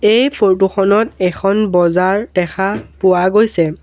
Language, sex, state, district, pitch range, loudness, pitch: Assamese, male, Assam, Sonitpur, 180-210 Hz, -14 LUFS, 195 Hz